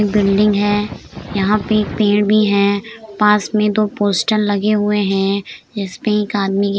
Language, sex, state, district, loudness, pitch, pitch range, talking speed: Hindi, female, Uttar Pradesh, Hamirpur, -16 LUFS, 210 Hz, 200-210 Hz, 175 wpm